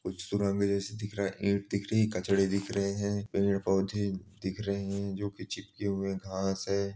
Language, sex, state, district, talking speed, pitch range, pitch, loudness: Hindi, male, Bihar, Supaul, 205 wpm, 95-100 Hz, 100 Hz, -32 LUFS